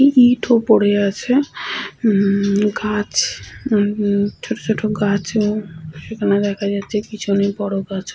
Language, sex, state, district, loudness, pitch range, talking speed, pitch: Bengali, female, West Bengal, Purulia, -18 LUFS, 200-215 Hz, 125 wpm, 205 Hz